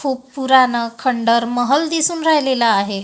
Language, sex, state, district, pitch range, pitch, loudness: Marathi, female, Maharashtra, Gondia, 235-280 Hz, 260 Hz, -16 LUFS